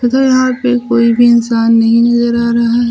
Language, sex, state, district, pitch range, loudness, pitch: Hindi, female, Uttar Pradesh, Lucknow, 235-245 Hz, -10 LUFS, 235 Hz